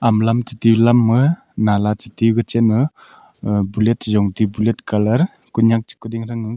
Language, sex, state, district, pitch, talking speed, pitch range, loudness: Wancho, male, Arunachal Pradesh, Longding, 115 Hz, 165 wpm, 110-115 Hz, -17 LUFS